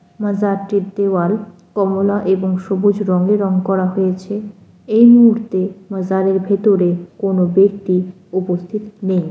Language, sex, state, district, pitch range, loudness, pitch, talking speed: Bengali, female, West Bengal, Jalpaiguri, 185-205 Hz, -16 LUFS, 195 Hz, 110 wpm